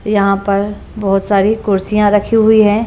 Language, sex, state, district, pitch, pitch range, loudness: Hindi, female, Punjab, Pathankot, 205 Hz, 200-215 Hz, -13 LUFS